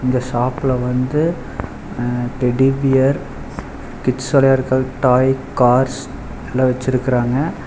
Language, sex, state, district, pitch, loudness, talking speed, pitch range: Tamil, male, Tamil Nadu, Chennai, 130 Hz, -17 LUFS, 95 wpm, 125-135 Hz